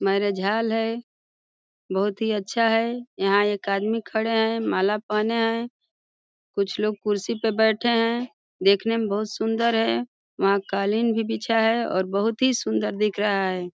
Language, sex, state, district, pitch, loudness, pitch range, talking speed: Hindi, female, Uttar Pradesh, Deoria, 215 Hz, -23 LUFS, 200-230 Hz, 165 wpm